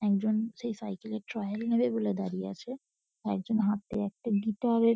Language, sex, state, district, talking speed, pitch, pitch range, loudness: Bengali, female, West Bengal, Kolkata, 180 wpm, 215 Hz, 205-230 Hz, -32 LUFS